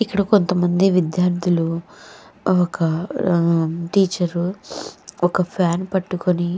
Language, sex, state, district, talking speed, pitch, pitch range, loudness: Telugu, female, Andhra Pradesh, Chittoor, 80 wpm, 180 Hz, 170-190 Hz, -20 LUFS